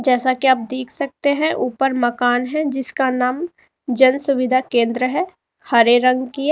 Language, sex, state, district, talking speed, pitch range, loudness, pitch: Hindi, female, Uttar Pradesh, Lalitpur, 175 wpm, 250-280 Hz, -18 LUFS, 260 Hz